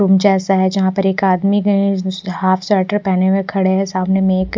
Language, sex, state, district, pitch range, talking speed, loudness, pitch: Hindi, male, Odisha, Nuapada, 185-195 Hz, 235 wpm, -15 LUFS, 190 Hz